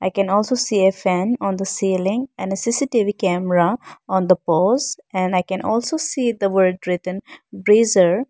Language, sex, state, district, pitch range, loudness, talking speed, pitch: English, female, Arunachal Pradesh, Lower Dibang Valley, 185-230 Hz, -19 LUFS, 180 wpm, 195 Hz